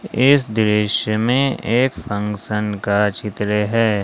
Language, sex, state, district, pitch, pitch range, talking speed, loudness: Hindi, male, Jharkhand, Ranchi, 105 Hz, 105-115 Hz, 120 wpm, -18 LUFS